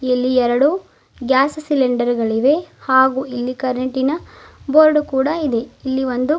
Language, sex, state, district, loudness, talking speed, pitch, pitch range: Kannada, female, Karnataka, Bidar, -17 LUFS, 110 wpm, 260 Hz, 250-295 Hz